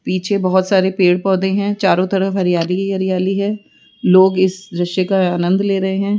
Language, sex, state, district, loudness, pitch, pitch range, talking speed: Hindi, female, Rajasthan, Jaipur, -16 LUFS, 190 Hz, 185-195 Hz, 195 wpm